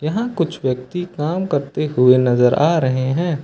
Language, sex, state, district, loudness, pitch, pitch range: Hindi, male, Uttar Pradesh, Lucknow, -18 LUFS, 150 Hz, 130-170 Hz